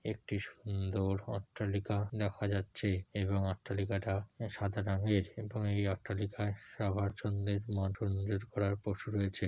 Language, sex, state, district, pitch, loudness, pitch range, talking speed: Bengali, male, West Bengal, Jalpaiguri, 100 Hz, -37 LUFS, 100-105 Hz, 95 wpm